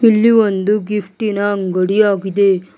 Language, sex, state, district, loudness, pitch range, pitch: Kannada, male, Karnataka, Bidar, -15 LUFS, 195-215 Hz, 205 Hz